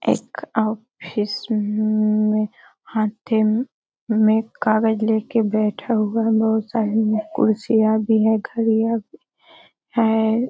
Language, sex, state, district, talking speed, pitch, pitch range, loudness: Hindi, female, Bihar, Darbhanga, 110 wpm, 220 Hz, 215-225 Hz, -20 LUFS